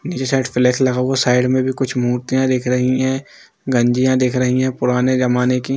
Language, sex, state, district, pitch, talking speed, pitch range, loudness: Hindi, male, Bihar, East Champaran, 130 Hz, 210 wpm, 125-130 Hz, -17 LUFS